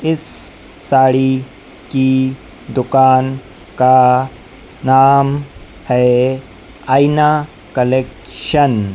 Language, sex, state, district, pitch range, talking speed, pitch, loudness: Hindi, female, Madhya Pradesh, Dhar, 125-135 Hz, 65 wpm, 130 Hz, -14 LUFS